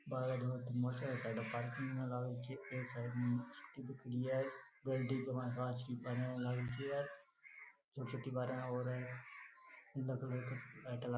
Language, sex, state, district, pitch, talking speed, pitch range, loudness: Rajasthani, male, Rajasthan, Nagaur, 125 Hz, 140 wpm, 125-130 Hz, -43 LUFS